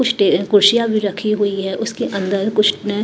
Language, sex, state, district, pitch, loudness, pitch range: Hindi, female, Maharashtra, Mumbai Suburban, 210 Hz, -16 LUFS, 200-215 Hz